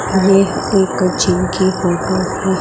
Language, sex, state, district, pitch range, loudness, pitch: Hindi, male, Gujarat, Gandhinagar, 185-195 Hz, -15 LUFS, 190 Hz